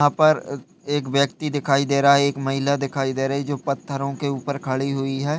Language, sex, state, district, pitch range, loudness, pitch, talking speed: Hindi, male, Uttar Pradesh, Jalaun, 135-140 Hz, -22 LUFS, 140 Hz, 235 wpm